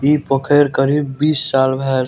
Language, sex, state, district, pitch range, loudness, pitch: Maithili, male, Bihar, Purnia, 135-145 Hz, -15 LUFS, 140 Hz